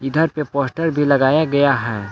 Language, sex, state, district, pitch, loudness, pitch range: Hindi, male, Jharkhand, Palamu, 140 Hz, -17 LUFS, 135-155 Hz